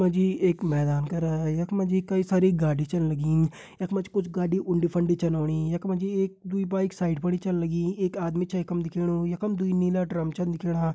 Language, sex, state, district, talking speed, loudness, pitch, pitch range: Hindi, male, Uttarakhand, Tehri Garhwal, 235 wpm, -26 LUFS, 175 Hz, 165-185 Hz